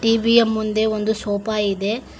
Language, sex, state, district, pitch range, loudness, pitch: Kannada, female, Karnataka, Koppal, 210-225 Hz, -19 LUFS, 220 Hz